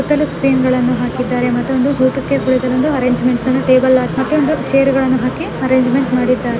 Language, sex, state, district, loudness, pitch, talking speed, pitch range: Kannada, female, Karnataka, Mysore, -14 LUFS, 260 Hz, 145 wpm, 250-270 Hz